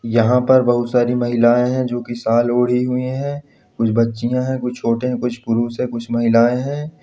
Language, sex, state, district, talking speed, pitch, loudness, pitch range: Hindi, male, Bihar, Samastipur, 205 wpm, 120 Hz, -18 LUFS, 115-125 Hz